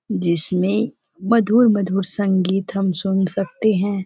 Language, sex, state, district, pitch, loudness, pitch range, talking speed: Hindi, female, Chhattisgarh, Rajnandgaon, 195 Hz, -19 LUFS, 185-210 Hz, 105 wpm